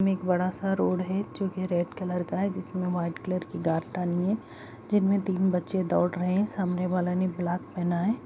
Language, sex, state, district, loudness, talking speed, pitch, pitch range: Hindi, female, Chhattisgarh, Kabirdham, -28 LUFS, 225 wpm, 185 Hz, 180-195 Hz